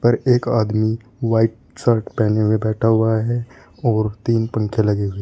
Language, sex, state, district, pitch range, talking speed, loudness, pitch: Hindi, male, Uttar Pradesh, Shamli, 110-120 Hz, 170 wpm, -19 LUFS, 110 Hz